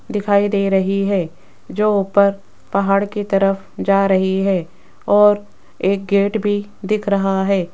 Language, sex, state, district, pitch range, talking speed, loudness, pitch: Hindi, female, Rajasthan, Jaipur, 195-205 Hz, 145 wpm, -17 LUFS, 200 Hz